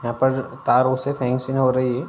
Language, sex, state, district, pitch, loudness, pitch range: Hindi, male, Uttar Pradesh, Ghazipur, 130 Hz, -21 LUFS, 125-135 Hz